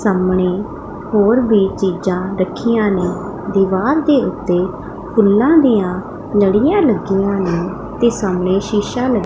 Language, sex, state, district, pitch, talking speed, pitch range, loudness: Punjabi, female, Punjab, Pathankot, 200 Hz, 115 wpm, 185-230 Hz, -16 LUFS